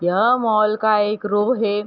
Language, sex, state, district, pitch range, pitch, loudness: Hindi, female, Uttar Pradesh, Hamirpur, 205-220 Hz, 215 Hz, -18 LUFS